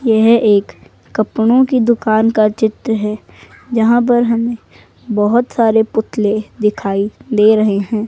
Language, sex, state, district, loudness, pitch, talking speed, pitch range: Hindi, female, Himachal Pradesh, Shimla, -14 LUFS, 220 Hz, 135 wpm, 215-235 Hz